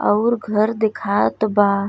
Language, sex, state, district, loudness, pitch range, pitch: Bhojpuri, female, Uttar Pradesh, Gorakhpur, -19 LUFS, 200-220 Hz, 210 Hz